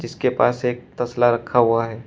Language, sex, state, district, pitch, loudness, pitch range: Hindi, male, Uttar Pradesh, Shamli, 120 Hz, -20 LUFS, 115-125 Hz